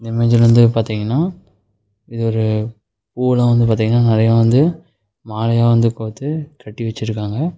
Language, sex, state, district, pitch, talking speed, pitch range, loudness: Tamil, male, Tamil Nadu, Namakkal, 115 Hz, 125 wpm, 110-120 Hz, -16 LUFS